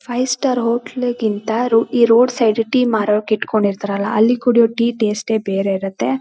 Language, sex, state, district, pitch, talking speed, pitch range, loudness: Kannada, female, Karnataka, Shimoga, 225 Hz, 165 wpm, 215-245 Hz, -17 LUFS